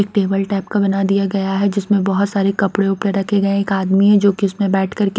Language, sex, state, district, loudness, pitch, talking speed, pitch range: Hindi, female, Haryana, Rohtak, -16 LUFS, 200 Hz, 300 wpm, 195-200 Hz